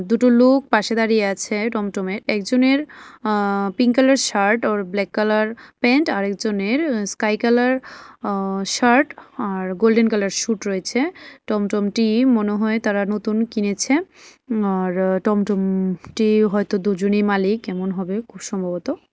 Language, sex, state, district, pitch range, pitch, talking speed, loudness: Bengali, female, Tripura, West Tripura, 200-235 Hz, 215 Hz, 125 wpm, -19 LUFS